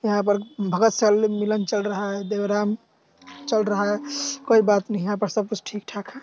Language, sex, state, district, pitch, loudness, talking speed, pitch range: Hindi, male, Bihar, Sitamarhi, 210 Hz, -23 LUFS, 200 wpm, 205-220 Hz